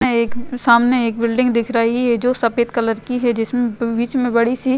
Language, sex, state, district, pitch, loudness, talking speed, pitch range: Hindi, female, Uttar Pradesh, Jyotiba Phule Nagar, 235 Hz, -17 LUFS, 215 wpm, 230-250 Hz